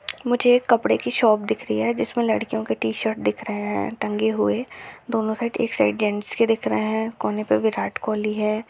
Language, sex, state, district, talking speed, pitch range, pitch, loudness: Hindi, female, Bihar, Darbhanga, 215 wpm, 205-230 Hz, 220 Hz, -22 LUFS